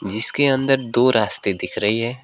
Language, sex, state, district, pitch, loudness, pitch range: Hindi, male, West Bengal, Alipurduar, 120 Hz, -17 LUFS, 110-130 Hz